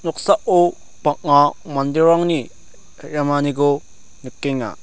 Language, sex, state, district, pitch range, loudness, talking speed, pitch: Garo, male, Meghalaya, South Garo Hills, 140-165 Hz, -18 LUFS, 60 wpm, 145 Hz